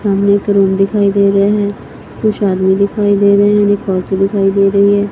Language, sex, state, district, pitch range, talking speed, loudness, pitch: Punjabi, female, Punjab, Fazilka, 195-205 Hz, 225 wpm, -12 LUFS, 200 Hz